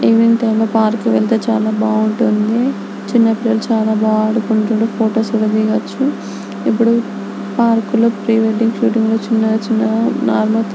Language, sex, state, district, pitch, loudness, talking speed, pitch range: Telugu, female, Andhra Pradesh, Anantapur, 225 Hz, -15 LUFS, 125 wpm, 220-230 Hz